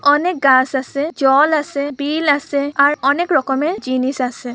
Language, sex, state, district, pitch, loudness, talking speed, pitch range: Bengali, female, West Bengal, Purulia, 280 Hz, -16 LUFS, 170 wpm, 270-295 Hz